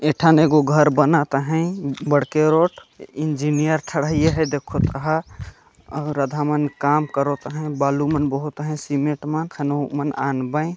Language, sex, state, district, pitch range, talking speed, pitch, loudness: Chhattisgarhi, male, Chhattisgarh, Jashpur, 145-155 Hz, 160 wpm, 150 Hz, -20 LUFS